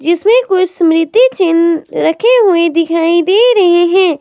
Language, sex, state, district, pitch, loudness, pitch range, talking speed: Hindi, female, Himachal Pradesh, Shimla, 345 Hz, -10 LUFS, 335-405 Hz, 145 wpm